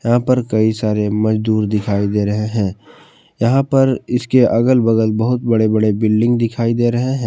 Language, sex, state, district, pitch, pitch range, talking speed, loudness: Hindi, male, Jharkhand, Palamu, 115 Hz, 110-120 Hz, 180 wpm, -16 LUFS